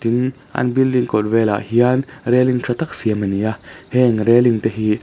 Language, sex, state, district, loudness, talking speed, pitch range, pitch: Mizo, male, Mizoram, Aizawl, -17 LUFS, 200 wpm, 110-125 Hz, 120 Hz